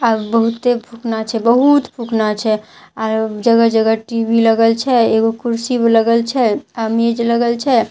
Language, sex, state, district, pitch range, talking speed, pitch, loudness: Maithili, female, Bihar, Katihar, 225-235 Hz, 175 wpm, 230 Hz, -15 LUFS